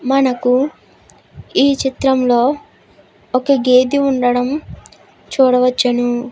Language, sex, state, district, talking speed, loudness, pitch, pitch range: Telugu, female, Andhra Pradesh, Guntur, 65 wpm, -15 LUFS, 255 Hz, 250-275 Hz